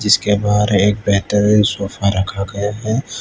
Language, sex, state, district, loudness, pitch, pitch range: Hindi, male, Gujarat, Valsad, -16 LUFS, 105 Hz, 100-105 Hz